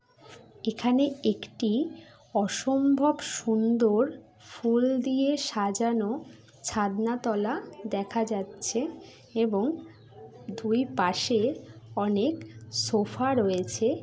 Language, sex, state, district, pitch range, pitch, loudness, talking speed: Bengali, female, West Bengal, Jhargram, 205-260 Hz, 225 Hz, -28 LUFS, 70 wpm